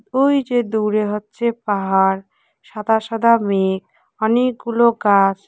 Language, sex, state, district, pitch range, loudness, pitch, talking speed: Bengali, female, West Bengal, Cooch Behar, 200-235 Hz, -18 LUFS, 220 Hz, 120 wpm